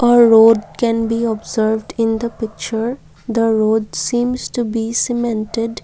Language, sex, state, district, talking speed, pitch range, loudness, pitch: English, female, Assam, Kamrup Metropolitan, 155 wpm, 220-235 Hz, -17 LUFS, 225 Hz